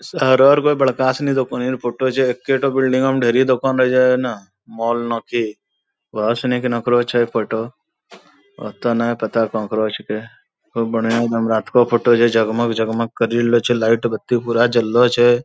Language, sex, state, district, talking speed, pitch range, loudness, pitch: Angika, male, Bihar, Bhagalpur, 175 wpm, 115-125 Hz, -17 LUFS, 120 Hz